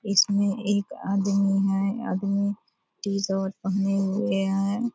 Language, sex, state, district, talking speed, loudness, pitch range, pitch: Hindi, female, Bihar, Purnia, 110 wpm, -25 LUFS, 195-200 Hz, 195 Hz